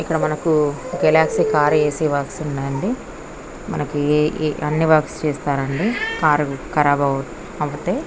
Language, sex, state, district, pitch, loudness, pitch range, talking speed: Telugu, female, Andhra Pradesh, Krishna, 150 Hz, -19 LUFS, 145-155 Hz, 110 wpm